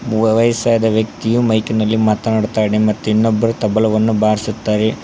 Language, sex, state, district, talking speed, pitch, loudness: Kannada, male, Karnataka, Koppal, 120 wpm, 110 Hz, -15 LUFS